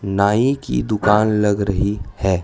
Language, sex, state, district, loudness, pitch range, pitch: Hindi, male, Chhattisgarh, Raipur, -18 LUFS, 100-105 Hz, 100 Hz